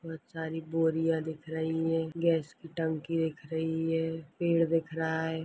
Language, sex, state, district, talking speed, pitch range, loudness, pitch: Hindi, female, Chhattisgarh, Bastar, 175 wpm, 160-165 Hz, -31 LUFS, 160 Hz